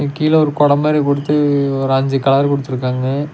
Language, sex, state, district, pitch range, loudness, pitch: Tamil, male, Tamil Nadu, Nilgiris, 135-145 Hz, -15 LUFS, 140 Hz